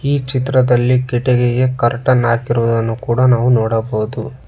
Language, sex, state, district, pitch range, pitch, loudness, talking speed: Kannada, male, Karnataka, Bangalore, 115-130 Hz, 120 Hz, -15 LUFS, 105 wpm